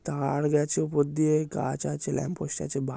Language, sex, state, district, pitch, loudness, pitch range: Bengali, male, West Bengal, North 24 Parganas, 145 Hz, -28 LUFS, 135-155 Hz